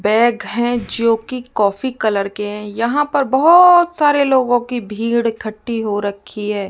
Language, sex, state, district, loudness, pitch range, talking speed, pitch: Hindi, female, Rajasthan, Jaipur, -16 LUFS, 210-260 Hz, 160 wpm, 230 Hz